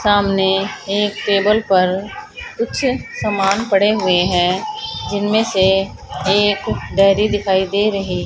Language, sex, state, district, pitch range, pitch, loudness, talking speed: Hindi, female, Haryana, Charkhi Dadri, 190-210 Hz, 200 Hz, -16 LUFS, 115 wpm